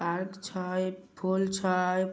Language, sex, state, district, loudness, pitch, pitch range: Magahi, male, Bihar, Samastipur, -31 LUFS, 185 Hz, 185-190 Hz